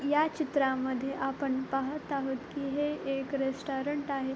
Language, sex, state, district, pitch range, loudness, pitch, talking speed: Marathi, female, Maharashtra, Pune, 265-290 Hz, -32 LUFS, 275 Hz, 140 wpm